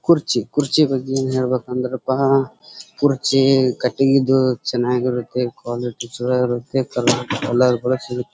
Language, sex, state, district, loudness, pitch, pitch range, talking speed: Kannada, male, Karnataka, Dharwad, -19 LUFS, 125 Hz, 125-135 Hz, 120 wpm